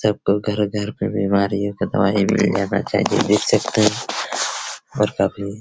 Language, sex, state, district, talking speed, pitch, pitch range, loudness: Hindi, male, Bihar, Araria, 170 wpm, 100 Hz, 100-105 Hz, -20 LUFS